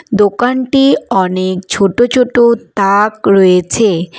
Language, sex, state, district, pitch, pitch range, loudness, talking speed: Bengali, female, West Bengal, Alipurduar, 210 Hz, 190-245 Hz, -11 LUFS, 85 wpm